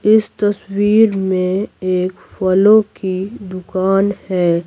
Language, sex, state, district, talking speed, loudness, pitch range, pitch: Hindi, female, Bihar, Patna, 105 wpm, -16 LUFS, 185-205 Hz, 190 Hz